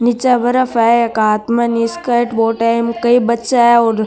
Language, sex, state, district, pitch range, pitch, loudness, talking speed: Marwari, male, Rajasthan, Nagaur, 230-240 Hz, 235 Hz, -14 LUFS, 190 wpm